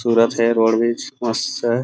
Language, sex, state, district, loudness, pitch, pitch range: Chhattisgarhi, male, Chhattisgarh, Raigarh, -18 LUFS, 115 Hz, 115-120 Hz